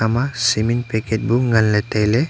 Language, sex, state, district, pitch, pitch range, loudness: Wancho, male, Arunachal Pradesh, Longding, 110 Hz, 110-120 Hz, -18 LUFS